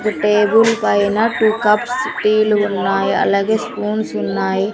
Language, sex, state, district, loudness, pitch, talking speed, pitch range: Telugu, female, Andhra Pradesh, Sri Satya Sai, -16 LUFS, 210 Hz, 140 wpm, 195-220 Hz